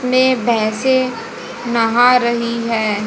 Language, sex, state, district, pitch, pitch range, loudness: Hindi, female, Haryana, Jhajjar, 235 Hz, 230-250 Hz, -15 LUFS